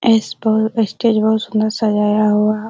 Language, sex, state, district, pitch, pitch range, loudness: Hindi, female, Bihar, Araria, 220 Hz, 215-220 Hz, -16 LUFS